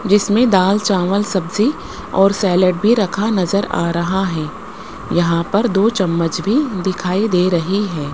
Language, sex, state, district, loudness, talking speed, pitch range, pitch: Hindi, female, Rajasthan, Jaipur, -16 LUFS, 155 wpm, 180-205 Hz, 190 Hz